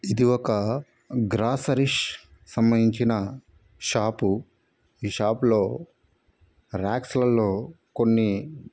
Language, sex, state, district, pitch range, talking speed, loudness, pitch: Telugu, male, Andhra Pradesh, Chittoor, 100-125 Hz, 80 wpm, -24 LUFS, 115 Hz